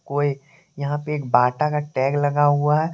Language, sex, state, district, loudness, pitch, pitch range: Hindi, male, Jharkhand, Deoghar, -21 LUFS, 145 Hz, 140-150 Hz